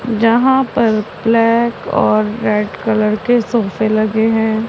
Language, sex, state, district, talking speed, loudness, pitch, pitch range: Hindi, female, Punjab, Pathankot, 130 wpm, -14 LUFS, 220 Hz, 215-235 Hz